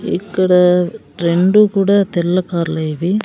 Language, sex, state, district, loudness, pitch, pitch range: Telugu, female, Andhra Pradesh, Sri Satya Sai, -15 LUFS, 180 Hz, 170-195 Hz